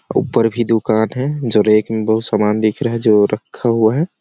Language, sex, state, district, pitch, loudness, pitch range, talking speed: Hindi, male, Chhattisgarh, Sarguja, 110 Hz, -16 LUFS, 110-120 Hz, 215 wpm